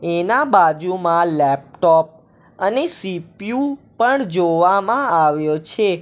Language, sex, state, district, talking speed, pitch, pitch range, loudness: Gujarati, male, Gujarat, Valsad, 90 wpm, 170 Hz, 160-200 Hz, -17 LUFS